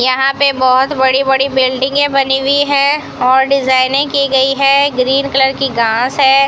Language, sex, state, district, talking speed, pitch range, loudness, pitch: Hindi, female, Rajasthan, Bikaner, 175 wpm, 260-275 Hz, -12 LUFS, 270 Hz